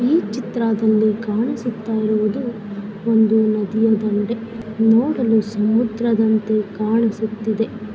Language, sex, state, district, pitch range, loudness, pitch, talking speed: Kannada, female, Karnataka, Bellary, 215-230 Hz, -19 LUFS, 220 Hz, 75 wpm